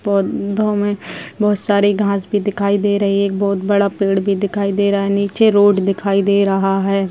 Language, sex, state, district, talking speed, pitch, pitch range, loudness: Hindi, female, Uttar Pradesh, Gorakhpur, 210 wpm, 200 Hz, 195-205 Hz, -16 LUFS